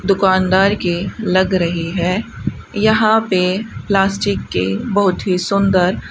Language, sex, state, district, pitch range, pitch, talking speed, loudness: Hindi, female, Rajasthan, Bikaner, 180-200 Hz, 190 Hz, 130 wpm, -16 LUFS